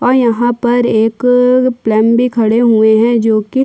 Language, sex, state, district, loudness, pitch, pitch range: Hindi, female, Chhattisgarh, Sukma, -11 LUFS, 235 Hz, 225-250 Hz